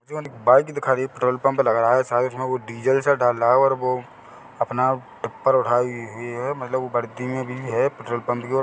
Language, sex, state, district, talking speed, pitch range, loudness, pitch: Hindi, male, Chhattisgarh, Bilaspur, 190 wpm, 120-130 Hz, -22 LUFS, 125 Hz